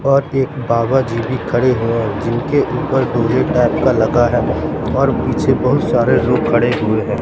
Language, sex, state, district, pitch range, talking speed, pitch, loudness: Hindi, male, Madhya Pradesh, Katni, 115-130 Hz, 175 wpm, 120 Hz, -15 LUFS